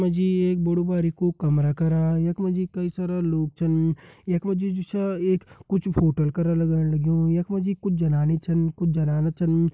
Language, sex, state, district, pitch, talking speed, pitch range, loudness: Hindi, male, Uttarakhand, Uttarkashi, 170 Hz, 215 wpm, 160-185 Hz, -24 LUFS